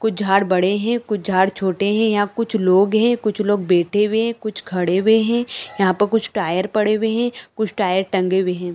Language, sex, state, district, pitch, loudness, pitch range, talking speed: Hindi, female, Chhattisgarh, Bilaspur, 205 Hz, -18 LUFS, 190-220 Hz, 225 wpm